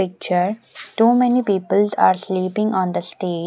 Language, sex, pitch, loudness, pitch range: English, female, 195 Hz, -19 LUFS, 185-215 Hz